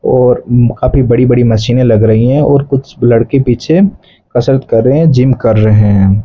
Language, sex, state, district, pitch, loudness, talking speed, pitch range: Hindi, male, Rajasthan, Bikaner, 125 Hz, -9 LUFS, 200 wpm, 115-135 Hz